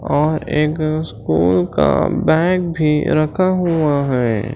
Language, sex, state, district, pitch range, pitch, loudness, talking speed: Hindi, male, Chhattisgarh, Raipur, 130-160 Hz, 155 Hz, -16 LUFS, 120 wpm